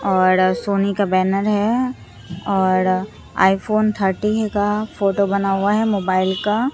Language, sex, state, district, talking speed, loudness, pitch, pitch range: Hindi, female, Bihar, Katihar, 135 wpm, -18 LUFS, 200 Hz, 190-210 Hz